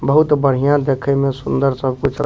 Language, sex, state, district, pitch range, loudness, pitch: Maithili, male, Bihar, Supaul, 135-145 Hz, -16 LUFS, 140 Hz